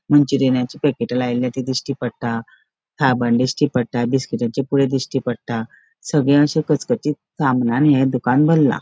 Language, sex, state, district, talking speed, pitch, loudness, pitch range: Konkani, female, Goa, North and South Goa, 135 wpm, 130 Hz, -19 LUFS, 125-145 Hz